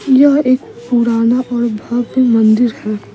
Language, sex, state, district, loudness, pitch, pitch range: Hindi, female, Bihar, Patna, -13 LUFS, 240 Hz, 230-255 Hz